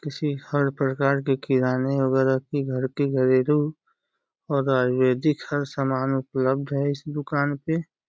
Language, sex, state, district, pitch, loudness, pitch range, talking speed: Hindi, male, Uttar Pradesh, Deoria, 140 Hz, -24 LUFS, 130-145 Hz, 140 wpm